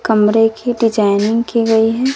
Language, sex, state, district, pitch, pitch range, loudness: Hindi, female, Bihar, West Champaran, 225 Hz, 220-235 Hz, -14 LUFS